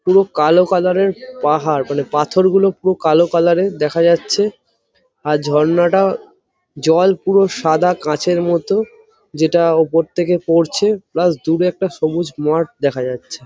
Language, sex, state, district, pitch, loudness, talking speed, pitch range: Bengali, male, West Bengal, Jhargram, 175 Hz, -15 LUFS, 155 wpm, 155-190 Hz